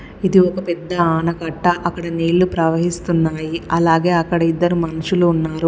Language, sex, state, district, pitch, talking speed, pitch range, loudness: Telugu, female, Telangana, Komaram Bheem, 170 Hz, 125 wpm, 165-175 Hz, -17 LUFS